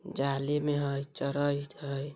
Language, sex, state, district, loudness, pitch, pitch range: Bajjika, female, Bihar, Vaishali, -32 LUFS, 140 Hz, 140-145 Hz